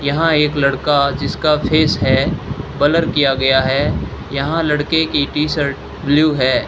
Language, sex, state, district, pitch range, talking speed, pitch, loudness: Hindi, male, Rajasthan, Bikaner, 140-155 Hz, 155 wpm, 145 Hz, -16 LUFS